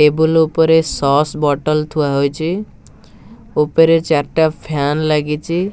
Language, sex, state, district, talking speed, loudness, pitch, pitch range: Odia, male, Odisha, Nuapada, 105 wpm, -15 LUFS, 155 Hz, 150-160 Hz